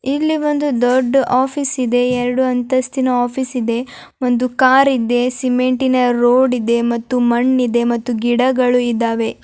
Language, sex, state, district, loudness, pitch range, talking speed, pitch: Kannada, male, Karnataka, Dharwad, -16 LUFS, 245-260 Hz, 125 wpm, 250 Hz